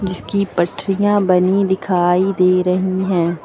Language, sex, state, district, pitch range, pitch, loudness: Hindi, female, Uttar Pradesh, Lucknow, 180-195 Hz, 185 Hz, -16 LUFS